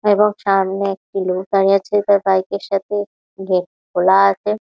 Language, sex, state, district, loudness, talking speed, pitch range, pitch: Bengali, female, West Bengal, Malda, -17 LUFS, 155 wpm, 190-205 Hz, 195 Hz